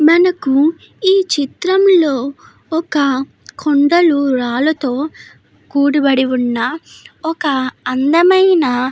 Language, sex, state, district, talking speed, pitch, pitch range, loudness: Telugu, female, Andhra Pradesh, Guntur, 75 wpm, 290 Hz, 270-340 Hz, -14 LUFS